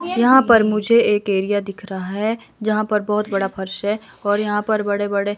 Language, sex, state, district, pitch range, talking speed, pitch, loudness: Hindi, female, Himachal Pradesh, Shimla, 200-215 Hz, 210 wpm, 210 Hz, -19 LUFS